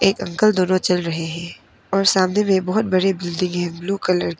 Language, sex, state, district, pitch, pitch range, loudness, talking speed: Hindi, female, Arunachal Pradesh, Papum Pare, 185 Hz, 175-195 Hz, -19 LUFS, 220 wpm